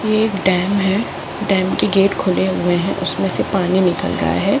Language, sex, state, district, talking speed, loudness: Hindi, female, Uttar Pradesh, Jalaun, 210 wpm, -17 LUFS